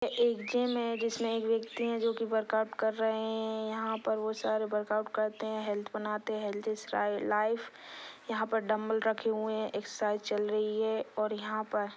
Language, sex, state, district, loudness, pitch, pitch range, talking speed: Hindi, female, Maharashtra, Dhule, -33 LUFS, 220 Hz, 215-225 Hz, 190 wpm